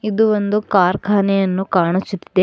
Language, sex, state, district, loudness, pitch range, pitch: Kannada, female, Karnataka, Bidar, -17 LUFS, 185-210 Hz, 195 Hz